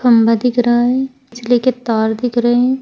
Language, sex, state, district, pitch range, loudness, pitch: Hindi, female, Uttar Pradesh, Saharanpur, 235-250 Hz, -14 LUFS, 245 Hz